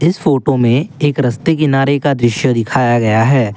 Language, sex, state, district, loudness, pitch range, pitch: Hindi, male, Assam, Kamrup Metropolitan, -13 LUFS, 120-145 Hz, 135 Hz